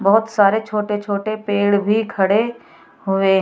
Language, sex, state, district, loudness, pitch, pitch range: Hindi, female, Uttar Pradesh, Shamli, -18 LUFS, 205 Hz, 200-215 Hz